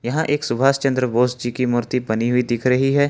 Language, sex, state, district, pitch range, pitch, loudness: Hindi, male, Jharkhand, Ranchi, 120-135 Hz, 125 Hz, -19 LUFS